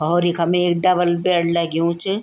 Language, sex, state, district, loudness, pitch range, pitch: Garhwali, female, Uttarakhand, Tehri Garhwal, -18 LUFS, 170-180 Hz, 175 Hz